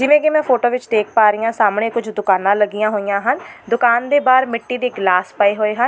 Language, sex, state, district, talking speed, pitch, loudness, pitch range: Punjabi, female, Delhi, New Delhi, 245 wpm, 225 Hz, -16 LUFS, 205-250 Hz